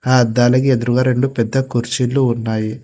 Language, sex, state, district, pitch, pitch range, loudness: Telugu, male, Telangana, Hyderabad, 125 Hz, 120-130 Hz, -16 LUFS